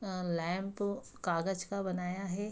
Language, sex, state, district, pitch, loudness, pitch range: Hindi, female, Bihar, Saharsa, 190 Hz, -36 LUFS, 180-200 Hz